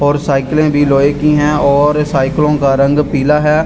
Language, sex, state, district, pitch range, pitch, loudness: Hindi, male, Delhi, New Delhi, 140-150 Hz, 145 Hz, -12 LUFS